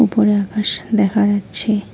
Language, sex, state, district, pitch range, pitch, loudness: Bengali, female, West Bengal, Alipurduar, 205-215 Hz, 210 Hz, -17 LUFS